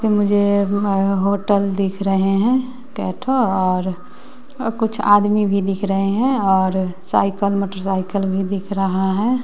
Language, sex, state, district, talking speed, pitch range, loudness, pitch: Hindi, female, Bihar, West Champaran, 135 wpm, 195-210 Hz, -18 LUFS, 200 Hz